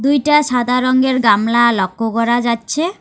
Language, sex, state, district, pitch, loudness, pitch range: Bengali, female, West Bengal, Alipurduar, 240 Hz, -14 LUFS, 230-265 Hz